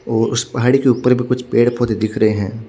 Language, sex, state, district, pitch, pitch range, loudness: Hindi, male, Odisha, Khordha, 120 Hz, 110-125 Hz, -16 LUFS